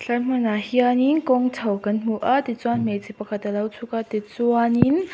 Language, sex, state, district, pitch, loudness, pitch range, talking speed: Mizo, female, Mizoram, Aizawl, 235 Hz, -22 LUFS, 210-250 Hz, 175 wpm